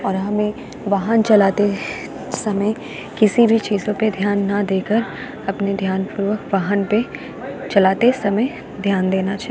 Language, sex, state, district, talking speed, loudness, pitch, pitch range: Hindi, female, Uttar Pradesh, Jalaun, 145 wpm, -19 LUFS, 205 Hz, 195-215 Hz